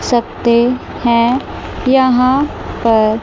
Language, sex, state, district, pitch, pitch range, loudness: Hindi, female, Chandigarh, Chandigarh, 240 Hz, 235-260 Hz, -14 LUFS